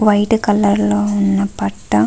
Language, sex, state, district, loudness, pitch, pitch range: Telugu, female, Andhra Pradesh, Visakhapatnam, -15 LUFS, 205 Hz, 195-210 Hz